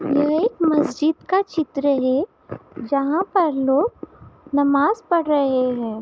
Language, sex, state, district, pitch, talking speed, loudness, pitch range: Hindi, female, Uttar Pradesh, Hamirpur, 295 Hz, 130 wpm, -20 LUFS, 275-335 Hz